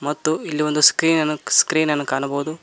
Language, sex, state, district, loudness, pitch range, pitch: Kannada, male, Karnataka, Koppal, -18 LUFS, 145-155 Hz, 150 Hz